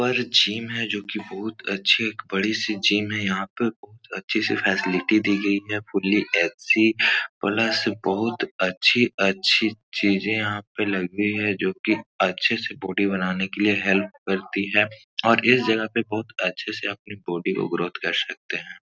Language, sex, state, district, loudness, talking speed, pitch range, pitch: Hindi, male, Uttar Pradesh, Etah, -22 LUFS, 175 wpm, 100-110 Hz, 105 Hz